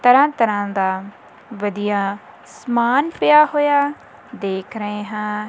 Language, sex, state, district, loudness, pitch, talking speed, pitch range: Punjabi, female, Punjab, Kapurthala, -19 LUFS, 210 Hz, 110 wpm, 205-270 Hz